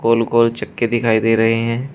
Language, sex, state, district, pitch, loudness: Hindi, male, Uttar Pradesh, Shamli, 115 Hz, -16 LUFS